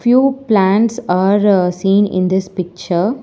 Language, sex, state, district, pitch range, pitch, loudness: English, female, Telangana, Hyderabad, 185-220 Hz, 195 Hz, -14 LUFS